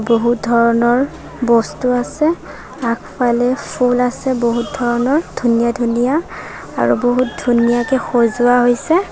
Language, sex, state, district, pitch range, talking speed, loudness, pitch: Assamese, female, Assam, Sonitpur, 235-255 Hz, 105 wpm, -16 LUFS, 245 Hz